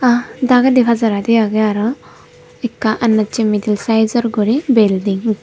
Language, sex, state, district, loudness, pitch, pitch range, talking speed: Chakma, female, Tripura, Dhalai, -14 LUFS, 225 Hz, 215-240 Hz, 120 wpm